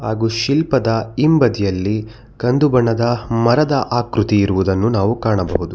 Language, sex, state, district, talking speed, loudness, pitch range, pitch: Kannada, male, Karnataka, Bangalore, 105 wpm, -16 LUFS, 110-125 Hz, 115 Hz